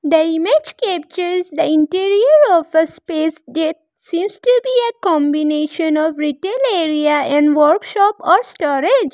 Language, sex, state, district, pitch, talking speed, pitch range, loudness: English, female, Arunachal Pradesh, Lower Dibang Valley, 320 Hz, 140 wpm, 305-375 Hz, -15 LUFS